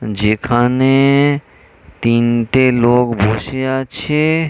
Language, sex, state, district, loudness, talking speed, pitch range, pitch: Bengali, male, West Bengal, North 24 Parganas, -14 LUFS, 65 wpm, 110-135 Hz, 120 Hz